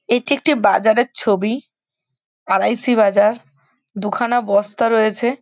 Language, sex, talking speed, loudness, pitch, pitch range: Bengali, female, 110 wpm, -17 LUFS, 220 Hz, 200-240 Hz